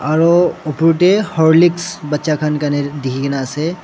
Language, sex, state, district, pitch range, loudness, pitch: Nagamese, male, Nagaland, Dimapur, 145-170 Hz, -15 LUFS, 155 Hz